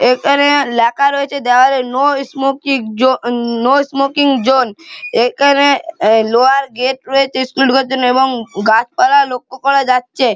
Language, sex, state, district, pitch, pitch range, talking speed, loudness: Bengali, male, West Bengal, Malda, 265 Hz, 245-275 Hz, 140 wpm, -13 LUFS